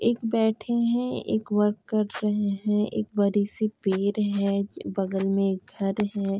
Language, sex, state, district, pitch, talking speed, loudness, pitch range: Hindi, female, Uttar Pradesh, Varanasi, 210 Hz, 160 wpm, -26 LUFS, 200-220 Hz